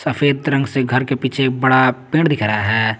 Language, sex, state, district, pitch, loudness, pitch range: Hindi, male, Jharkhand, Garhwa, 130 Hz, -16 LUFS, 125-140 Hz